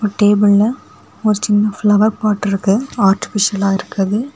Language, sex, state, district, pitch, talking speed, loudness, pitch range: Tamil, female, Tamil Nadu, Kanyakumari, 205 Hz, 110 wpm, -15 LUFS, 200-215 Hz